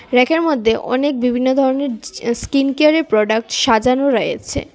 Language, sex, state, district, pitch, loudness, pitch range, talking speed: Bengali, female, Tripura, West Tripura, 255 Hz, -16 LUFS, 235-280 Hz, 140 wpm